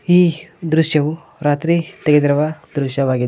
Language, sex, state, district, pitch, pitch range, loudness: Kannada, male, Karnataka, Koppal, 155 Hz, 145-165 Hz, -17 LUFS